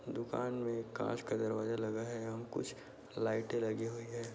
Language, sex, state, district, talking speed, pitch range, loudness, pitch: Hindi, male, Uttar Pradesh, Budaun, 180 wpm, 110-120 Hz, -39 LUFS, 115 Hz